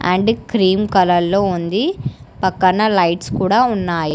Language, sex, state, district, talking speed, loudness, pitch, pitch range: Telugu, female, Telangana, Hyderabad, 130 wpm, -16 LUFS, 185 Hz, 170-200 Hz